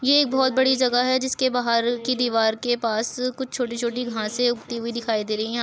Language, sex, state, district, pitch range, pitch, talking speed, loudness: Hindi, female, Rajasthan, Nagaur, 230-255 Hz, 245 Hz, 225 wpm, -22 LUFS